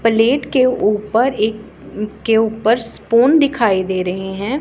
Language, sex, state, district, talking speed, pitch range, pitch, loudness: Hindi, female, Punjab, Pathankot, 145 wpm, 210-245 Hz, 225 Hz, -16 LUFS